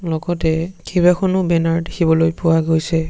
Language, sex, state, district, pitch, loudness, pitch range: Assamese, male, Assam, Sonitpur, 165 Hz, -17 LUFS, 160-175 Hz